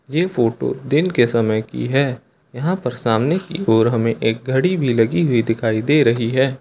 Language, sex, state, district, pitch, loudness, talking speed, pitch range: Hindi, male, Uttar Pradesh, Lucknow, 125 Hz, -18 LUFS, 190 wpm, 115-150 Hz